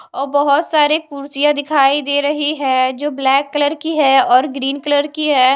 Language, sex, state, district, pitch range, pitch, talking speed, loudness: Hindi, female, Odisha, Khordha, 270-295 Hz, 285 Hz, 195 wpm, -15 LUFS